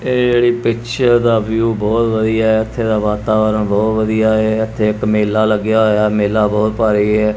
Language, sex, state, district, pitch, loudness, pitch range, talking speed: Punjabi, male, Punjab, Kapurthala, 110 Hz, -14 LUFS, 105-115 Hz, 195 wpm